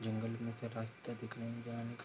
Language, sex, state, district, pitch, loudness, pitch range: Hindi, male, Bihar, Darbhanga, 115 Hz, -43 LUFS, 115-120 Hz